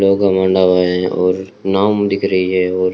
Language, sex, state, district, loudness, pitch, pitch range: Hindi, male, Rajasthan, Bikaner, -15 LUFS, 95 Hz, 90-100 Hz